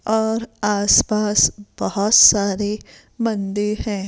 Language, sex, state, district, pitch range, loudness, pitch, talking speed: Hindi, female, Rajasthan, Jaipur, 205-220 Hz, -18 LUFS, 210 Hz, 105 wpm